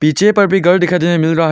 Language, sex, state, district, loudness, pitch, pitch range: Hindi, male, Arunachal Pradesh, Longding, -12 LUFS, 175 Hz, 165-190 Hz